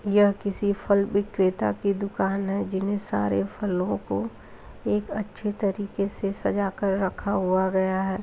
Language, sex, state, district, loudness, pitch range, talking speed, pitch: Hindi, female, Uttar Pradesh, Muzaffarnagar, -26 LUFS, 190-205 Hz, 160 wpm, 200 Hz